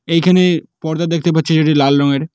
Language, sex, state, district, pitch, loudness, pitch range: Bengali, male, West Bengal, Cooch Behar, 160 Hz, -14 LUFS, 155-170 Hz